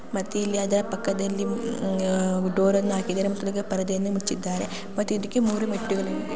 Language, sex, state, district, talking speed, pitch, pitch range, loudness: Kannada, female, Karnataka, Shimoga, 120 wpm, 200 Hz, 195-205 Hz, -26 LUFS